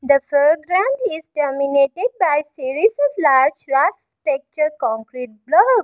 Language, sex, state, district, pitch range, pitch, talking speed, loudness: English, female, Arunachal Pradesh, Lower Dibang Valley, 275-355 Hz, 295 Hz, 115 wpm, -18 LUFS